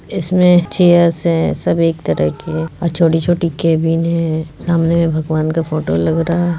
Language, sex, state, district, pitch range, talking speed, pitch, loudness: Hindi, female, Bihar, Muzaffarpur, 160-170 Hz, 190 wpm, 165 Hz, -15 LUFS